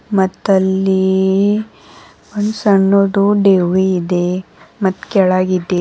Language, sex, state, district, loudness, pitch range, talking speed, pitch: Kannada, female, Karnataka, Bidar, -14 LUFS, 185-200 Hz, 70 wpm, 190 Hz